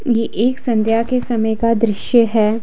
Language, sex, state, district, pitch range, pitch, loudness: Hindi, female, Himachal Pradesh, Shimla, 220-240 Hz, 230 Hz, -16 LUFS